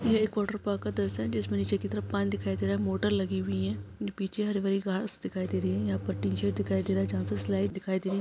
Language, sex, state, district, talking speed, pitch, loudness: Hindi, female, Chhattisgarh, Kabirdham, 305 wpm, 100 Hz, -30 LUFS